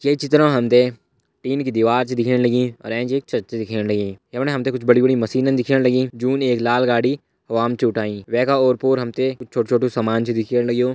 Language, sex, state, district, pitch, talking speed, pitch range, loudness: Hindi, male, Uttarakhand, Uttarkashi, 125 Hz, 230 wpm, 115-130 Hz, -19 LUFS